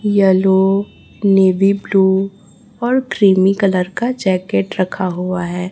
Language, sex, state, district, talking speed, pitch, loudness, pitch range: Hindi, male, Chhattisgarh, Raipur, 115 wpm, 195 Hz, -15 LUFS, 185-200 Hz